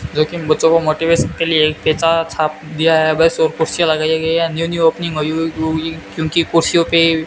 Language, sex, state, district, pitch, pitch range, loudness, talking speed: Hindi, male, Rajasthan, Bikaner, 160 Hz, 155-165 Hz, -15 LUFS, 175 wpm